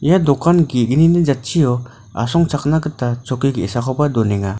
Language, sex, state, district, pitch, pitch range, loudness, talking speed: Garo, male, Meghalaya, North Garo Hills, 135 Hz, 120-155 Hz, -16 LUFS, 115 wpm